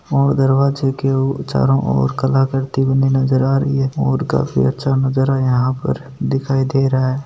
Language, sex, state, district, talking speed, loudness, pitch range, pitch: Marwari, male, Rajasthan, Nagaur, 165 wpm, -17 LUFS, 130-135 Hz, 135 Hz